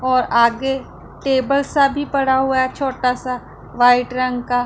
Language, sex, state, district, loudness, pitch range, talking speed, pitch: Hindi, female, Punjab, Pathankot, -18 LUFS, 250-270 Hz, 165 wpm, 255 Hz